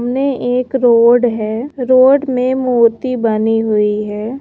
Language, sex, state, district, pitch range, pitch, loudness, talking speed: Hindi, female, West Bengal, Jalpaiguri, 225-255 Hz, 245 Hz, -13 LUFS, 135 wpm